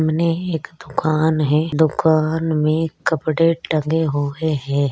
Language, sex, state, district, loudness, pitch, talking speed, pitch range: Hindi, female, Rajasthan, Churu, -19 LUFS, 155 Hz, 120 wpm, 150-160 Hz